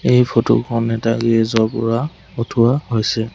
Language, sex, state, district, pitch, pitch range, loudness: Assamese, male, Assam, Sonitpur, 115 Hz, 115-120 Hz, -17 LUFS